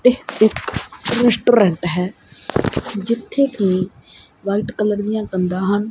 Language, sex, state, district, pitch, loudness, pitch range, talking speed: Punjabi, male, Punjab, Kapurthala, 210 Hz, -19 LUFS, 190-235 Hz, 110 wpm